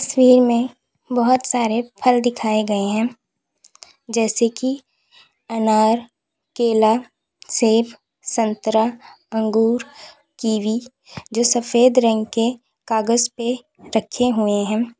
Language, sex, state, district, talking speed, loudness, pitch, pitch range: Hindi, female, Uttar Pradesh, Lalitpur, 105 wpm, -19 LUFS, 235 Hz, 220-245 Hz